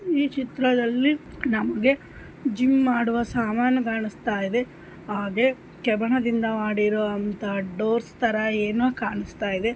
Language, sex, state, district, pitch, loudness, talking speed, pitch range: Kannada, female, Karnataka, Shimoga, 230 Hz, -24 LUFS, 85 wpm, 215-255 Hz